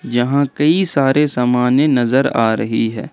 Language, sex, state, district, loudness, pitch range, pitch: Hindi, male, Jharkhand, Ranchi, -15 LUFS, 120-145 Hz, 130 Hz